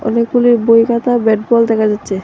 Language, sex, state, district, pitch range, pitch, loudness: Bengali, female, Tripura, Dhalai, 215-240 Hz, 230 Hz, -12 LUFS